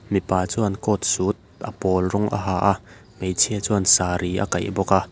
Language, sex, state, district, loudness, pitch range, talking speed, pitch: Mizo, male, Mizoram, Aizawl, -21 LUFS, 95-105 Hz, 200 wpm, 100 Hz